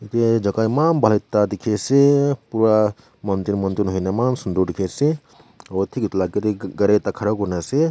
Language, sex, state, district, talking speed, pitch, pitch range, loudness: Nagamese, male, Nagaland, Kohima, 190 wpm, 105 Hz, 95-120 Hz, -20 LUFS